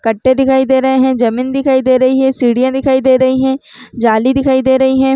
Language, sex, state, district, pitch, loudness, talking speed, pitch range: Chhattisgarhi, female, Chhattisgarh, Raigarh, 260 Hz, -12 LUFS, 230 wpm, 255-265 Hz